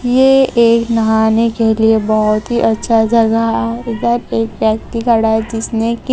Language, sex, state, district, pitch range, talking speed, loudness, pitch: Hindi, female, Chhattisgarh, Raipur, 220-235 Hz, 165 wpm, -13 LUFS, 225 Hz